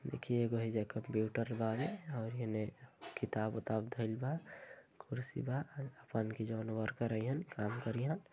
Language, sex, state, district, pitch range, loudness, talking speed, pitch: Bhojpuri, male, Uttar Pradesh, Gorakhpur, 110-135 Hz, -40 LUFS, 150 wpm, 115 Hz